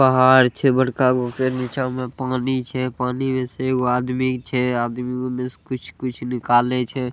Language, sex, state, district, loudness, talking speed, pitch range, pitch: Maithili, male, Bihar, Saharsa, -21 LUFS, 175 wpm, 125-130 Hz, 130 Hz